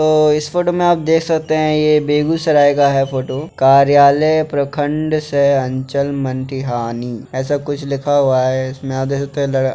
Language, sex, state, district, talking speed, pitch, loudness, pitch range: Maithili, male, Bihar, Begusarai, 185 wpm, 140 Hz, -15 LUFS, 135-150 Hz